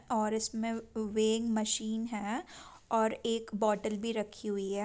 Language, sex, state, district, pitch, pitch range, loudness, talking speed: Hindi, female, Bihar, Sitamarhi, 220 Hz, 215-225 Hz, -33 LUFS, 135 wpm